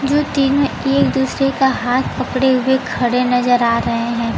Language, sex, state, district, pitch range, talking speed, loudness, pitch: Hindi, female, Bihar, Kaimur, 245-270 Hz, 190 wpm, -16 LUFS, 260 Hz